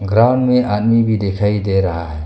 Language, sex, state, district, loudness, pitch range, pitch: Hindi, male, Arunachal Pradesh, Longding, -15 LUFS, 95-115 Hz, 105 Hz